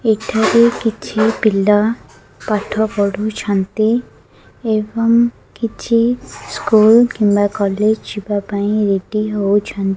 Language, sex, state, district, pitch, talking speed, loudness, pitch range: Odia, female, Odisha, Khordha, 215 Hz, 85 wpm, -16 LUFS, 205-225 Hz